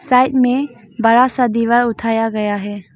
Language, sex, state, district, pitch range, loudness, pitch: Hindi, female, Arunachal Pradesh, Longding, 215-250 Hz, -15 LUFS, 230 Hz